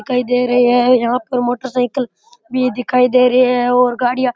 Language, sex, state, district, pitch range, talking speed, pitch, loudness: Rajasthani, male, Rajasthan, Churu, 245-255 Hz, 205 wpm, 250 Hz, -15 LUFS